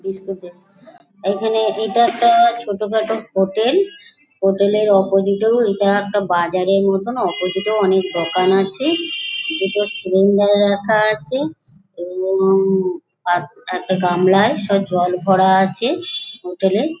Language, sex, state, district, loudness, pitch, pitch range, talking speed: Bengali, female, West Bengal, Dakshin Dinajpur, -17 LUFS, 195 Hz, 190-220 Hz, 120 wpm